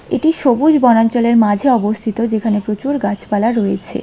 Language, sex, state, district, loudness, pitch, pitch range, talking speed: Bengali, female, West Bengal, Alipurduar, -14 LUFS, 225 Hz, 210-250 Hz, 135 wpm